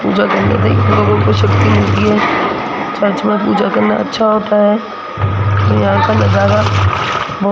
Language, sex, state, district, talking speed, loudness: Hindi, female, Rajasthan, Jaipur, 160 wpm, -12 LUFS